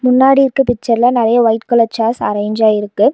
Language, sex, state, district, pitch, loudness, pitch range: Tamil, female, Tamil Nadu, Nilgiris, 230 Hz, -13 LUFS, 220-250 Hz